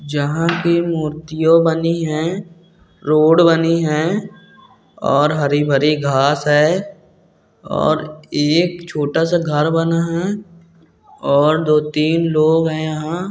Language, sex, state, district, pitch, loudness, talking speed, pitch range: Hindi, male, Bihar, Darbhanga, 160 Hz, -16 LUFS, 110 wpm, 150-170 Hz